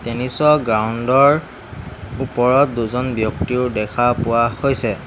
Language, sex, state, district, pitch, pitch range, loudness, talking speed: Assamese, male, Assam, Hailakandi, 120 Hz, 115-130 Hz, -17 LUFS, 120 wpm